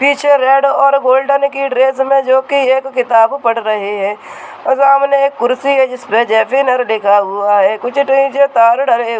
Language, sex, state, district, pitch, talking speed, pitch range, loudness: Hindi, male, Rajasthan, Nagaur, 265 Hz, 190 wpm, 230-275 Hz, -12 LUFS